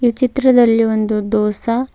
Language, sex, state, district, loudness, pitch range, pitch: Kannada, female, Karnataka, Bidar, -15 LUFS, 215-250 Hz, 230 Hz